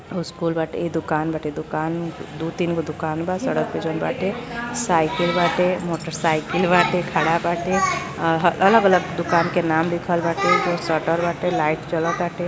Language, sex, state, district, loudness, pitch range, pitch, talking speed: Bhojpuri, male, Uttar Pradesh, Deoria, -21 LUFS, 165-180 Hz, 170 Hz, 150 wpm